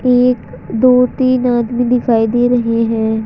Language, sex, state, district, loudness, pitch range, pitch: Hindi, female, Haryana, Rohtak, -13 LUFS, 225-250 Hz, 240 Hz